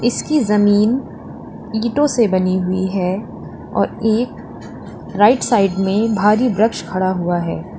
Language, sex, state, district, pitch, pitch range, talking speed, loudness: Hindi, female, Uttar Pradesh, Lalitpur, 210 Hz, 185-230 Hz, 130 wpm, -17 LUFS